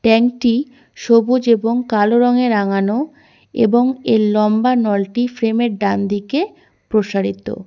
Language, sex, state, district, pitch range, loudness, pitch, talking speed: Bengali, female, West Bengal, Cooch Behar, 210-250 Hz, -16 LUFS, 230 Hz, 115 wpm